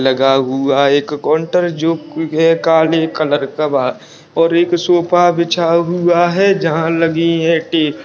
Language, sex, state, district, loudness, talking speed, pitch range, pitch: Hindi, male, Uttarakhand, Uttarkashi, -14 LUFS, 165 wpm, 150-170 Hz, 165 Hz